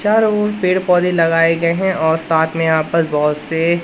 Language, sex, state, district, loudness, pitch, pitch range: Hindi, male, Madhya Pradesh, Katni, -15 LUFS, 165 Hz, 160-185 Hz